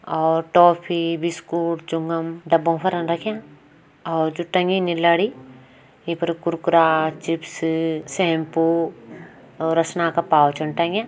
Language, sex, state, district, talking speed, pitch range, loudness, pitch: Kumaoni, female, Uttarakhand, Tehri Garhwal, 125 wpm, 160-170 Hz, -21 LUFS, 165 Hz